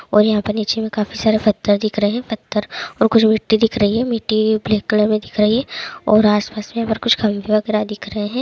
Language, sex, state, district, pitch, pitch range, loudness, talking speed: Hindi, female, Bihar, Sitamarhi, 215 Hz, 210-220 Hz, -17 LUFS, 230 wpm